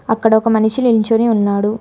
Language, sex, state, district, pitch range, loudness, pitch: Telugu, female, Telangana, Hyderabad, 220-230 Hz, -14 LUFS, 220 Hz